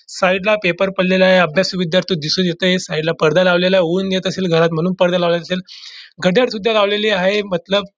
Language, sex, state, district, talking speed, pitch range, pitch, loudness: Marathi, male, Maharashtra, Dhule, 205 wpm, 175-190 Hz, 185 Hz, -16 LUFS